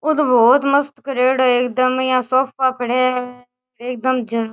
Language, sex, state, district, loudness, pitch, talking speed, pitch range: Rajasthani, female, Rajasthan, Churu, -17 LUFS, 255 Hz, 185 wpm, 250-260 Hz